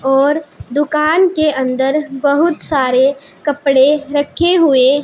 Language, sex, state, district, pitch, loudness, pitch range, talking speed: Hindi, female, Punjab, Pathankot, 290 Hz, -14 LUFS, 270-305 Hz, 120 wpm